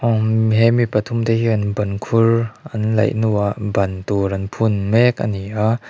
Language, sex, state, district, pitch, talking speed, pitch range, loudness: Mizo, male, Mizoram, Aizawl, 110 Hz, 195 wpm, 100-115 Hz, -18 LUFS